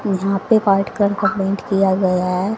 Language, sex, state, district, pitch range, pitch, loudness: Hindi, female, Haryana, Charkhi Dadri, 190-205 Hz, 195 Hz, -17 LUFS